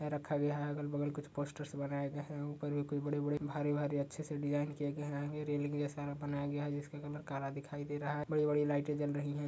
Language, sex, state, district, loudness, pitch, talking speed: Hindi, male, Uttar Pradesh, Budaun, -39 LUFS, 145 Hz, 235 wpm